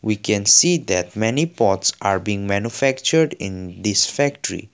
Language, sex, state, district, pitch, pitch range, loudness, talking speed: English, male, Assam, Kamrup Metropolitan, 105 Hz, 100-140 Hz, -18 LUFS, 150 wpm